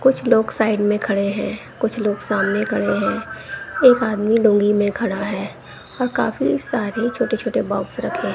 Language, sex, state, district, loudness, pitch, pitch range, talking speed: Hindi, female, Bihar, West Champaran, -19 LUFS, 215 Hz, 205-230 Hz, 170 wpm